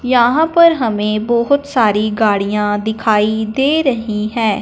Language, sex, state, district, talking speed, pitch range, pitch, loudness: Hindi, female, Punjab, Fazilka, 130 wpm, 210-260 Hz, 220 Hz, -14 LUFS